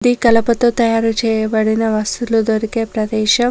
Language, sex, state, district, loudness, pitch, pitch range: Telugu, female, Telangana, Komaram Bheem, -15 LUFS, 225 Hz, 220-235 Hz